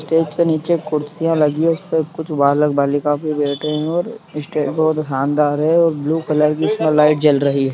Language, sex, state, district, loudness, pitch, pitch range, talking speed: Hindi, male, Bihar, Saharsa, -17 LUFS, 150 Hz, 145-160 Hz, 195 wpm